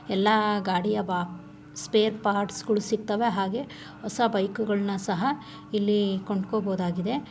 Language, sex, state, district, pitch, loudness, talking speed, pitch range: Kannada, female, Karnataka, Shimoga, 205 Hz, -27 LUFS, 115 wpm, 190-215 Hz